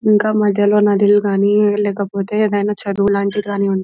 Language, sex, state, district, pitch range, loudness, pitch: Telugu, female, Telangana, Nalgonda, 200-210 Hz, -15 LUFS, 205 Hz